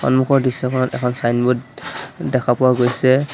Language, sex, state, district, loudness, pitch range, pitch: Assamese, male, Assam, Sonitpur, -18 LUFS, 125-130 Hz, 130 Hz